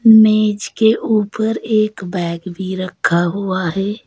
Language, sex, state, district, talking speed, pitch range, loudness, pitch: Hindi, female, Uttar Pradesh, Saharanpur, 130 wpm, 185-220 Hz, -16 LUFS, 200 Hz